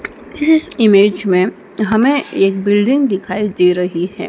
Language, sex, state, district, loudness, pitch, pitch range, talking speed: Hindi, female, Madhya Pradesh, Dhar, -14 LUFS, 205 Hz, 185-240 Hz, 140 wpm